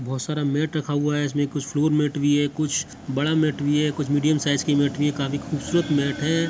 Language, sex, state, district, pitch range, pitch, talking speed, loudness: Hindi, male, Bihar, Muzaffarpur, 145-150 Hz, 145 Hz, 260 wpm, -23 LUFS